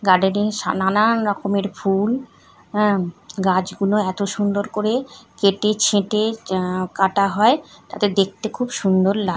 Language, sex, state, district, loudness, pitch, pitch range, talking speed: Bengali, female, West Bengal, North 24 Parganas, -20 LUFS, 200 Hz, 190-215 Hz, 130 wpm